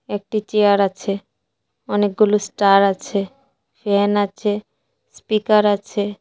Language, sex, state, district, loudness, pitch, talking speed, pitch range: Bengali, female, Tripura, West Tripura, -18 LUFS, 205 Hz, 95 wpm, 200-215 Hz